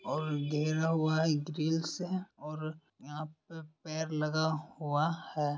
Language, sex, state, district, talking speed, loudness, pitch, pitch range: Hindi, male, Bihar, Bhagalpur, 130 wpm, -34 LUFS, 155 Hz, 150-160 Hz